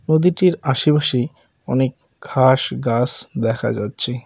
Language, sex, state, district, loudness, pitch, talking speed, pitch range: Bengali, male, West Bengal, Cooch Behar, -18 LUFS, 130 Hz, 100 wpm, 120-150 Hz